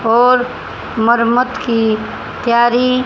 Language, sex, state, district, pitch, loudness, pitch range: Hindi, female, Haryana, Jhajjar, 235 Hz, -14 LUFS, 230-250 Hz